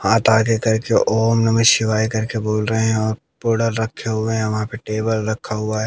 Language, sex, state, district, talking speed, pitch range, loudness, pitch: Hindi, male, Haryana, Jhajjar, 195 wpm, 110-115 Hz, -18 LUFS, 110 Hz